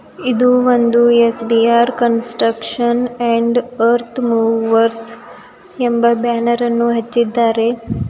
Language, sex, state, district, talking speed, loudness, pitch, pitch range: Kannada, female, Karnataka, Bidar, 95 wpm, -14 LUFS, 235 Hz, 230-240 Hz